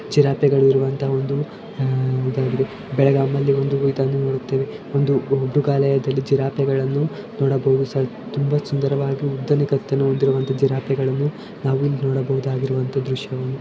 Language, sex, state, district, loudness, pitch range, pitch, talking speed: Kannada, male, Karnataka, Belgaum, -20 LUFS, 135-140 Hz, 135 Hz, 100 wpm